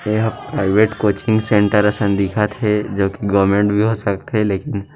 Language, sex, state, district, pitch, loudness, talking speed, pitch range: Chhattisgarhi, male, Chhattisgarh, Rajnandgaon, 105 Hz, -17 LUFS, 195 wpm, 100-105 Hz